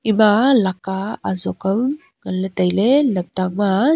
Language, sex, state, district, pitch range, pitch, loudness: Wancho, female, Arunachal Pradesh, Longding, 185-235 Hz, 195 Hz, -18 LUFS